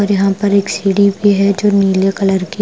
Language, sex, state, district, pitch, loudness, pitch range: Hindi, female, Punjab, Pathankot, 200 Hz, -13 LUFS, 195-200 Hz